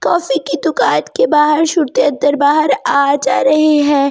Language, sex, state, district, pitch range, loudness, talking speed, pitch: Hindi, female, Delhi, New Delhi, 280-305 Hz, -13 LUFS, 175 wpm, 290 Hz